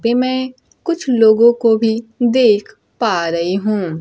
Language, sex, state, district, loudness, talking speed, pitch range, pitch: Hindi, female, Bihar, Kaimur, -15 LUFS, 150 wpm, 210-250 Hz, 225 Hz